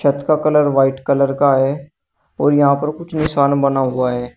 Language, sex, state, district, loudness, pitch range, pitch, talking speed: Hindi, male, Uttar Pradesh, Shamli, -16 LUFS, 135-150 Hz, 140 Hz, 205 wpm